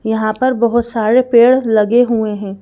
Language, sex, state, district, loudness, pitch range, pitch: Hindi, female, Madhya Pradesh, Bhopal, -13 LUFS, 215-245 Hz, 230 Hz